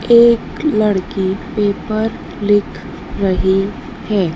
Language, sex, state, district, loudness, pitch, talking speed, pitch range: Hindi, female, Madhya Pradesh, Dhar, -16 LUFS, 205 Hz, 80 wpm, 195-225 Hz